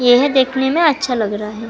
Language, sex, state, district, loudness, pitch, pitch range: Hindi, female, Karnataka, Bangalore, -15 LUFS, 255 Hz, 225-270 Hz